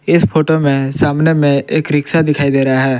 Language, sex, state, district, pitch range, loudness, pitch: Hindi, male, Jharkhand, Palamu, 135-160 Hz, -13 LUFS, 145 Hz